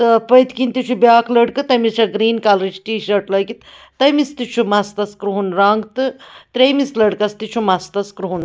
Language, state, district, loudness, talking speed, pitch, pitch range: Kashmiri, Punjab, Kapurthala, -16 LUFS, 170 wpm, 225 Hz, 200-250 Hz